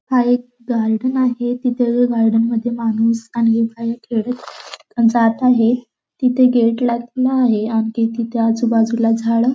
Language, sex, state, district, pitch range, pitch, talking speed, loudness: Marathi, female, Maharashtra, Nagpur, 230-245 Hz, 235 Hz, 125 wpm, -17 LUFS